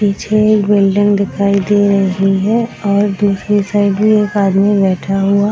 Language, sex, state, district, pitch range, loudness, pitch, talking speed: Hindi, female, Bihar, Madhepura, 195-205 Hz, -13 LUFS, 200 Hz, 175 wpm